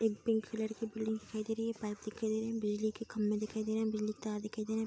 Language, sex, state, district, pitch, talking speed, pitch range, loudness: Hindi, female, Bihar, Darbhanga, 220 Hz, 345 wpm, 215-220 Hz, -37 LUFS